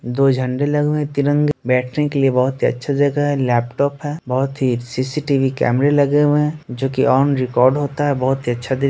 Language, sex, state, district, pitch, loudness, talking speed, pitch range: Hindi, male, Bihar, Muzaffarpur, 140 Hz, -18 LUFS, 215 wpm, 130-145 Hz